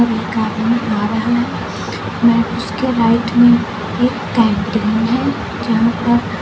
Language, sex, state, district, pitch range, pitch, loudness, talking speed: Hindi, female, Uttar Pradesh, Lucknow, 220-235 Hz, 230 Hz, -16 LUFS, 140 wpm